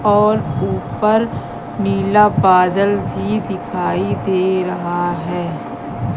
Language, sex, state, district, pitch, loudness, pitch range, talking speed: Hindi, female, Madhya Pradesh, Katni, 185 Hz, -17 LUFS, 175-205 Hz, 90 wpm